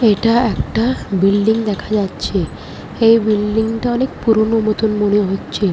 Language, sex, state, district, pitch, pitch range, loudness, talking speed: Bengali, female, West Bengal, Malda, 220 Hz, 205-225 Hz, -16 LUFS, 145 wpm